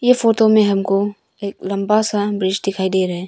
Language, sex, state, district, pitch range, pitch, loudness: Hindi, female, Arunachal Pradesh, Longding, 190-215 Hz, 200 Hz, -17 LUFS